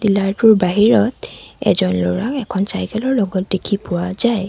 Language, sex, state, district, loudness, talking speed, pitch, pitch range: Assamese, female, Assam, Sonitpur, -17 LUFS, 135 wpm, 200 Hz, 185-225 Hz